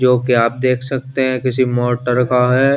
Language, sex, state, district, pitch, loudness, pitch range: Hindi, male, Chandigarh, Chandigarh, 125 Hz, -16 LUFS, 125-130 Hz